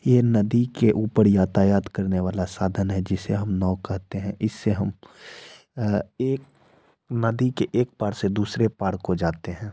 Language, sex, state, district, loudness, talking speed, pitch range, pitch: Hindi, male, Bihar, Madhepura, -24 LUFS, 175 wpm, 95-110 Hz, 100 Hz